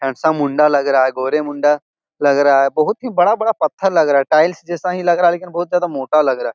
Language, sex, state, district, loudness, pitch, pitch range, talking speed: Hindi, male, Bihar, Jahanabad, -16 LUFS, 155 Hz, 140-175 Hz, 275 wpm